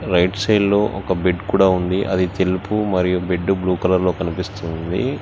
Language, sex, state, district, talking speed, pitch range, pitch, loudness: Telugu, male, Telangana, Hyderabad, 170 wpm, 90-95 Hz, 95 Hz, -19 LUFS